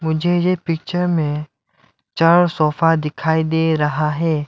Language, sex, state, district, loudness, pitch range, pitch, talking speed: Hindi, male, Arunachal Pradesh, Lower Dibang Valley, -18 LUFS, 150-165 Hz, 160 Hz, 135 wpm